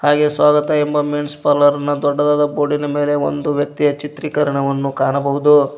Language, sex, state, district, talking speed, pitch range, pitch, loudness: Kannada, male, Karnataka, Koppal, 145 wpm, 145-150 Hz, 145 Hz, -16 LUFS